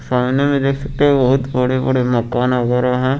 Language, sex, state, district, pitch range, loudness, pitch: Hindi, male, Chandigarh, Chandigarh, 125-135 Hz, -16 LUFS, 130 Hz